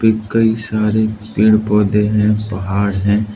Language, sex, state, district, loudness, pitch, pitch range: Hindi, male, Arunachal Pradesh, Lower Dibang Valley, -15 LUFS, 105 Hz, 105-110 Hz